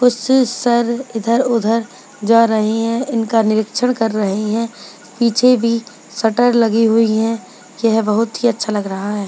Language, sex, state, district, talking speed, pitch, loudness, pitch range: Hindi, female, Bihar, Purnia, 155 wpm, 230 Hz, -16 LUFS, 220-240 Hz